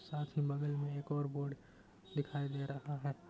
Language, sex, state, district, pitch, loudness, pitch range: Hindi, male, Bihar, Muzaffarpur, 145 Hz, -40 LUFS, 140-145 Hz